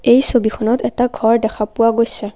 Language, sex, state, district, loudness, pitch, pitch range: Assamese, female, Assam, Kamrup Metropolitan, -15 LUFS, 230 Hz, 220-245 Hz